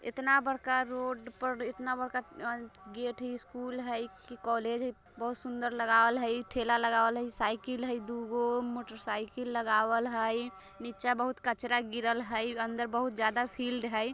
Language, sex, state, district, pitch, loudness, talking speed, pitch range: Bajjika, female, Bihar, Vaishali, 240 Hz, -32 LUFS, 165 wpm, 230-250 Hz